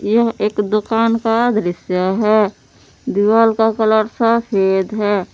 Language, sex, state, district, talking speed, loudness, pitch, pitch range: Hindi, female, Jharkhand, Palamu, 125 wpm, -16 LUFS, 215 Hz, 205-225 Hz